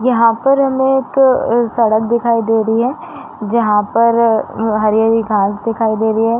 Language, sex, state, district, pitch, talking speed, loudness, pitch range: Hindi, female, Uttar Pradesh, Varanasi, 230 Hz, 160 wpm, -14 LUFS, 220-235 Hz